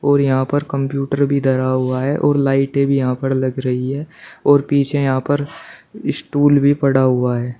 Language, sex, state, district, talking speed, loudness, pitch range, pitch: Hindi, male, Uttar Pradesh, Shamli, 195 wpm, -17 LUFS, 130-145 Hz, 140 Hz